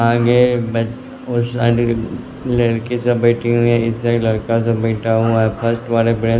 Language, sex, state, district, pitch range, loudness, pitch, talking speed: Hindi, male, Bihar, West Champaran, 115-120 Hz, -17 LUFS, 115 Hz, 180 wpm